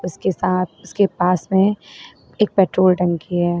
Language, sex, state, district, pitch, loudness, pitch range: Hindi, female, Uttar Pradesh, Lalitpur, 185 Hz, -18 LUFS, 175-195 Hz